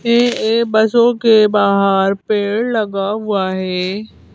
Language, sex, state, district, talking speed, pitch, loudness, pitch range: Hindi, female, Madhya Pradesh, Bhopal, 125 wpm, 210 Hz, -15 LUFS, 195-230 Hz